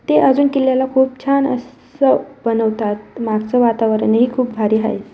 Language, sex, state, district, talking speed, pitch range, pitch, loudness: Marathi, female, Maharashtra, Dhule, 150 wpm, 220-265 Hz, 245 Hz, -16 LUFS